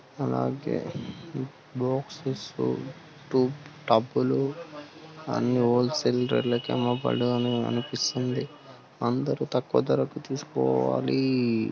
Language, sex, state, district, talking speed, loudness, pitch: Telugu, male, Telangana, Karimnagar, 85 wpm, -27 LUFS, 125 Hz